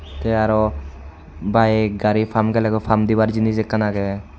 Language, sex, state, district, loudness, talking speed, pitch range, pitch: Chakma, male, Tripura, Unakoti, -19 LUFS, 150 wpm, 100-110 Hz, 110 Hz